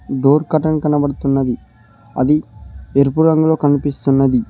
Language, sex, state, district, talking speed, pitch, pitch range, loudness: Telugu, male, Telangana, Mahabubabad, 95 wpm, 140 Hz, 125-150 Hz, -15 LUFS